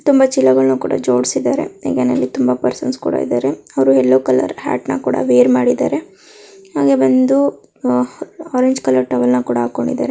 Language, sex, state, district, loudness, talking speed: Kannada, female, Karnataka, Bellary, -15 LUFS, 150 wpm